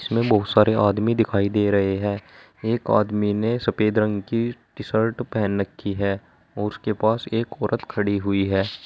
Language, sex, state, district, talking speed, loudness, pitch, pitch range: Hindi, male, Uttar Pradesh, Saharanpur, 185 wpm, -22 LUFS, 105 Hz, 100-110 Hz